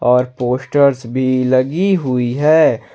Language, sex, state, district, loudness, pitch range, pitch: Hindi, male, Jharkhand, Ranchi, -15 LUFS, 125-140 Hz, 130 Hz